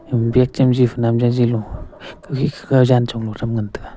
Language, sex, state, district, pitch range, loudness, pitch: Wancho, male, Arunachal Pradesh, Longding, 115-125 Hz, -17 LUFS, 120 Hz